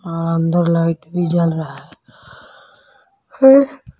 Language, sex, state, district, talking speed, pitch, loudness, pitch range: Hindi, female, Punjab, Pathankot, 120 wpm, 170 Hz, -15 LUFS, 165-195 Hz